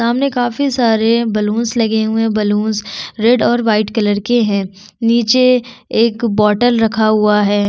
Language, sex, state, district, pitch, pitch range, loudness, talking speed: Hindi, female, Chhattisgarh, Sukma, 225 Hz, 210-240 Hz, -14 LUFS, 155 wpm